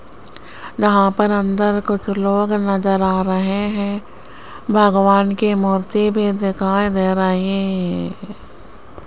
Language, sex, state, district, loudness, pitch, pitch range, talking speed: Hindi, female, Rajasthan, Jaipur, -17 LUFS, 195 Hz, 190-205 Hz, 110 wpm